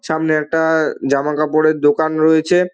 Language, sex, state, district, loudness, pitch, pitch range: Bengali, male, West Bengal, Dakshin Dinajpur, -15 LUFS, 155 Hz, 155-160 Hz